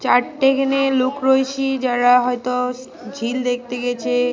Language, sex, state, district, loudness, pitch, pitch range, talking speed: Bengali, female, Jharkhand, Jamtara, -19 LUFS, 250 Hz, 245-265 Hz, 125 wpm